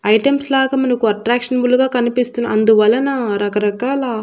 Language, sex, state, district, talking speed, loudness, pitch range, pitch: Telugu, female, Andhra Pradesh, Annamaya, 115 wpm, -16 LUFS, 220-265 Hz, 240 Hz